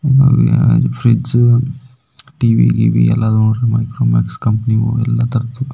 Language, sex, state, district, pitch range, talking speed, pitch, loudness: Kannada, male, Karnataka, Belgaum, 110-125 Hz, 95 wpm, 115 Hz, -13 LUFS